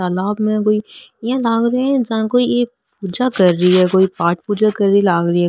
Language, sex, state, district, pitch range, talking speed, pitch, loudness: Rajasthani, female, Rajasthan, Nagaur, 185-235 Hz, 250 wpm, 210 Hz, -16 LUFS